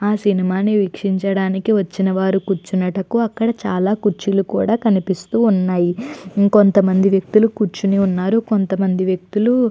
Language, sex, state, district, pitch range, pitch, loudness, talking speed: Telugu, female, Andhra Pradesh, Chittoor, 190-215 Hz, 195 Hz, -17 LUFS, 110 wpm